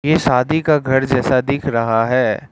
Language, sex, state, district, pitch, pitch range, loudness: Hindi, male, Arunachal Pradesh, Lower Dibang Valley, 135 Hz, 125-150 Hz, -16 LUFS